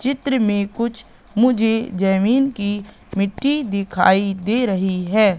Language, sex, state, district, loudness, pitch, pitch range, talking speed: Hindi, female, Madhya Pradesh, Katni, -19 LUFS, 210 Hz, 195-245 Hz, 120 wpm